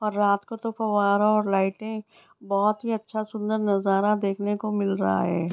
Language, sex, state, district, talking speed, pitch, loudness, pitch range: Hindi, female, Bihar, Begusarai, 185 wpm, 210 Hz, -25 LUFS, 200-215 Hz